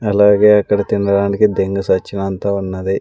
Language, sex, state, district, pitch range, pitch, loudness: Telugu, male, Andhra Pradesh, Sri Satya Sai, 95-105 Hz, 100 Hz, -15 LUFS